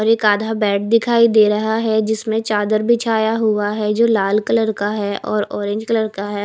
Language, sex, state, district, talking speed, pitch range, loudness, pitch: Hindi, female, Haryana, Rohtak, 215 wpm, 210-225 Hz, -17 LUFS, 215 Hz